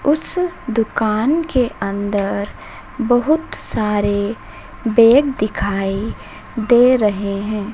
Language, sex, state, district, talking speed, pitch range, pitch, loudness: Hindi, female, Madhya Pradesh, Dhar, 85 wpm, 205-255 Hz, 225 Hz, -17 LUFS